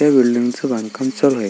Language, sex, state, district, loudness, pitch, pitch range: Marathi, male, Maharashtra, Sindhudurg, -18 LUFS, 130 Hz, 120-140 Hz